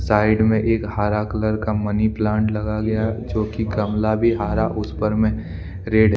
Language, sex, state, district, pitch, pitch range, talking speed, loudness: Hindi, male, Jharkhand, Deoghar, 110 Hz, 105-110 Hz, 195 wpm, -21 LUFS